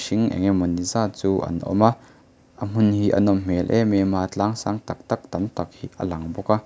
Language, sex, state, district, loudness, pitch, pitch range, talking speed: Mizo, male, Mizoram, Aizawl, -22 LUFS, 100 Hz, 95-110 Hz, 245 wpm